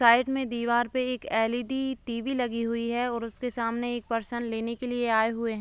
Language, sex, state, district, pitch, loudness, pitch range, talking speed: Hindi, female, Bihar, Begusarai, 235 Hz, -28 LUFS, 230-245 Hz, 225 wpm